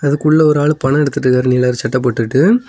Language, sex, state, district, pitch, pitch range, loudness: Tamil, male, Tamil Nadu, Kanyakumari, 140 Hz, 125-150 Hz, -13 LUFS